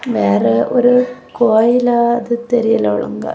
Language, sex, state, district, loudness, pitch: Tamil, female, Tamil Nadu, Kanyakumari, -14 LUFS, 235 Hz